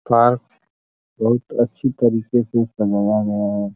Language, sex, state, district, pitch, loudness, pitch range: Hindi, male, Uttar Pradesh, Etah, 115 Hz, -19 LUFS, 105-120 Hz